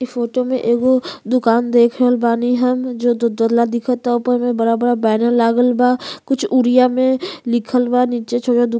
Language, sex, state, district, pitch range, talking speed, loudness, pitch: Bhojpuri, female, Uttar Pradesh, Gorakhpur, 235-250 Hz, 190 wpm, -16 LUFS, 245 Hz